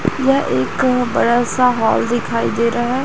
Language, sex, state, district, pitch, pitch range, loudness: Hindi, female, Chhattisgarh, Raipur, 245 Hz, 240-260 Hz, -16 LUFS